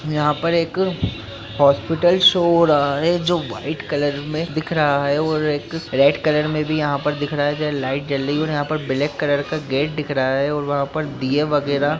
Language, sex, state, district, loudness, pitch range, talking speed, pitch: Hindi, male, Bihar, Jahanabad, -19 LUFS, 140-155 Hz, 230 wpm, 150 Hz